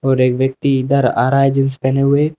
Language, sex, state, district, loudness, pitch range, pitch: Hindi, male, Uttar Pradesh, Lucknow, -15 LUFS, 130-140 Hz, 135 Hz